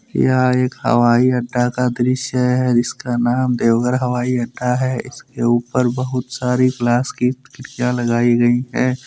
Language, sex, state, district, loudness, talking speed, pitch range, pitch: Hindi, male, Jharkhand, Deoghar, -17 LUFS, 150 wpm, 120-125 Hz, 125 Hz